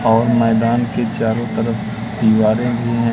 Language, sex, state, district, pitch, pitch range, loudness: Hindi, male, Madhya Pradesh, Katni, 115 Hz, 110-115 Hz, -17 LUFS